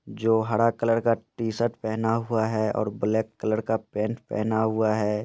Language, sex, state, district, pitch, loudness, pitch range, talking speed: Hindi, male, Jharkhand, Jamtara, 110 Hz, -25 LUFS, 110-115 Hz, 185 wpm